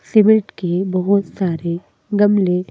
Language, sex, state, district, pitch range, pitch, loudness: Hindi, female, Madhya Pradesh, Bhopal, 180-205 Hz, 190 Hz, -17 LUFS